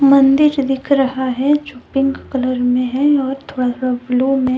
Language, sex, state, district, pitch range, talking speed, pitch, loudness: Hindi, female, Jharkhand, Deoghar, 255-275 Hz, 185 wpm, 265 Hz, -16 LUFS